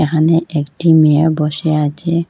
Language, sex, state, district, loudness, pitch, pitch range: Bengali, female, Assam, Hailakandi, -14 LUFS, 155 Hz, 150-165 Hz